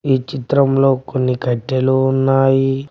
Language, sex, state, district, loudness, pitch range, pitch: Telugu, male, Telangana, Mahabubabad, -16 LUFS, 130-135 Hz, 135 Hz